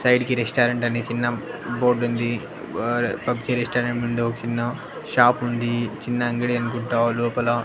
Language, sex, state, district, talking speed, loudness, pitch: Telugu, male, Andhra Pradesh, Annamaya, 155 wpm, -23 LUFS, 120 Hz